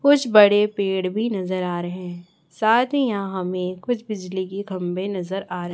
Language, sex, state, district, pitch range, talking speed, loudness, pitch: Hindi, male, Chhattisgarh, Raipur, 180-210 Hz, 200 wpm, -22 LUFS, 190 Hz